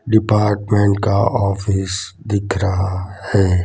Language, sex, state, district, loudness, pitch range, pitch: Hindi, male, Gujarat, Gandhinagar, -18 LUFS, 95-105 Hz, 100 Hz